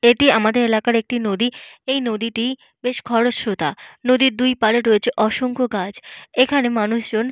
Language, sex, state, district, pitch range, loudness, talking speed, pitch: Bengali, female, Jharkhand, Jamtara, 220-255 Hz, -19 LUFS, 140 wpm, 240 Hz